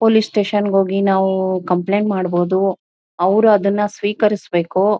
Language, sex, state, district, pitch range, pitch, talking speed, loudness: Kannada, female, Karnataka, Mysore, 185-210 Hz, 195 Hz, 120 wpm, -17 LUFS